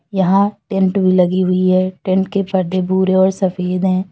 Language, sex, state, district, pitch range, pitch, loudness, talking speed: Hindi, female, Uttar Pradesh, Lalitpur, 185-190 Hz, 185 Hz, -16 LUFS, 190 wpm